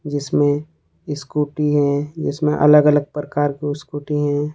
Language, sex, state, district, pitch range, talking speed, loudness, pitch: Hindi, male, Jharkhand, Ranchi, 145-150 Hz, 130 wpm, -19 LUFS, 145 Hz